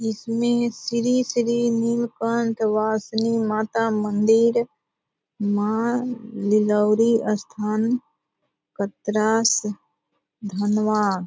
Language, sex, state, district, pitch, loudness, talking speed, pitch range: Hindi, female, Bihar, Purnia, 225 Hz, -22 LUFS, 70 wpm, 210-235 Hz